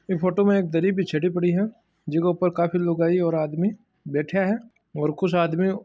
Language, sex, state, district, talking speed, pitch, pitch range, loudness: Marwari, male, Rajasthan, Churu, 205 wpm, 180 Hz, 170-195 Hz, -23 LUFS